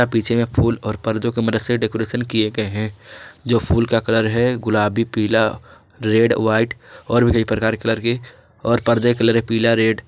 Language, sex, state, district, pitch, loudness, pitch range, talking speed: Hindi, male, Jharkhand, Garhwa, 115 Hz, -18 LUFS, 110-115 Hz, 190 wpm